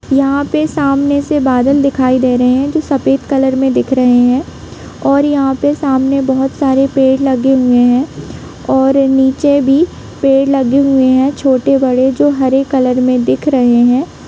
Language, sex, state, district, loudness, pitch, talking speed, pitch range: Hindi, female, Jharkhand, Jamtara, -11 LUFS, 270 Hz, 175 wpm, 260-280 Hz